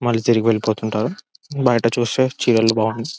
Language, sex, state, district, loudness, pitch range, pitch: Telugu, male, Telangana, Nalgonda, -18 LUFS, 110-120 Hz, 115 Hz